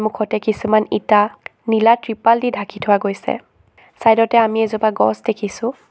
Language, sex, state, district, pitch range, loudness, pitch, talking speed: Assamese, female, Assam, Sonitpur, 210-230 Hz, -17 LUFS, 220 Hz, 140 wpm